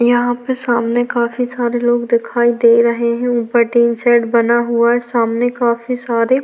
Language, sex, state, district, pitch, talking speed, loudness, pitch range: Hindi, female, Chhattisgarh, Sukma, 240 Hz, 175 wpm, -15 LUFS, 235-245 Hz